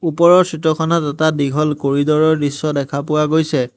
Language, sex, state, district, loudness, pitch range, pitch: Assamese, male, Assam, Hailakandi, -16 LUFS, 145-160 Hz, 155 Hz